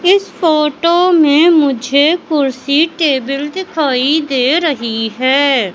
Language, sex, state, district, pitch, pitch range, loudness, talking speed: Hindi, male, Madhya Pradesh, Katni, 295 Hz, 270-325 Hz, -12 LUFS, 105 wpm